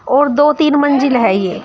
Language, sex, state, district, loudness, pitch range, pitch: Hindi, female, Uttar Pradesh, Shamli, -12 LUFS, 255-290 Hz, 280 Hz